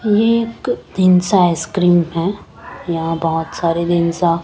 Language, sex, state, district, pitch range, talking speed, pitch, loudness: Hindi, female, Chandigarh, Chandigarh, 165-190 Hz, 135 wpm, 175 Hz, -16 LUFS